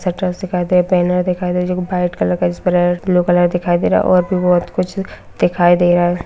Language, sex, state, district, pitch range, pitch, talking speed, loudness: Hindi, female, Bihar, Araria, 175-180 Hz, 180 Hz, 230 wpm, -15 LUFS